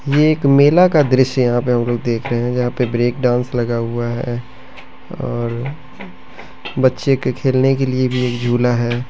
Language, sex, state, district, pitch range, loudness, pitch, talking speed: Hindi, male, Bihar, Begusarai, 120-130 Hz, -16 LUFS, 125 Hz, 185 wpm